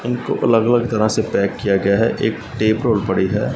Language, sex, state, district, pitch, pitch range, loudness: Hindi, male, Punjab, Fazilka, 110 Hz, 100-115 Hz, -18 LUFS